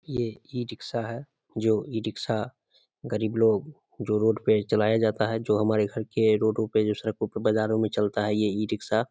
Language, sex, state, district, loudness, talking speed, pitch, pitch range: Hindi, male, Bihar, Samastipur, -26 LUFS, 190 wpm, 110 Hz, 105-115 Hz